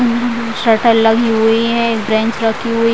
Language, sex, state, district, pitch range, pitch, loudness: Hindi, female, Bihar, Vaishali, 225-235 Hz, 230 Hz, -14 LUFS